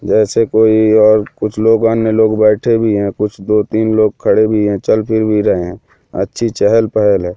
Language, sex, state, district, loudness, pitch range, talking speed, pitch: Hindi, male, Madhya Pradesh, Katni, -13 LUFS, 105-110 Hz, 210 wpm, 110 Hz